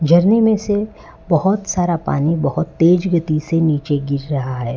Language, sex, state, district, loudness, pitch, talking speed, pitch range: Hindi, male, Gujarat, Valsad, -17 LUFS, 165 Hz, 175 wpm, 150-185 Hz